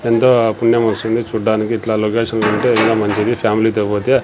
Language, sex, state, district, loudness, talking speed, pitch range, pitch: Telugu, male, Andhra Pradesh, Sri Satya Sai, -15 LUFS, 170 wpm, 110-115 Hz, 110 Hz